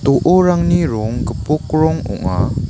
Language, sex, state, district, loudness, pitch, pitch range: Garo, male, Meghalaya, West Garo Hills, -16 LUFS, 155 Hz, 120-175 Hz